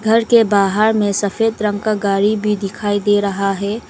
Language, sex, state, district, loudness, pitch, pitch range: Hindi, female, Arunachal Pradesh, Lower Dibang Valley, -16 LUFS, 205 Hz, 200-215 Hz